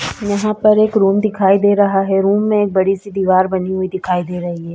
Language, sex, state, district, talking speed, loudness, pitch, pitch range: Hindi, female, Uttar Pradesh, Budaun, 250 wpm, -15 LUFS, 195 Hz, 185-205 Hz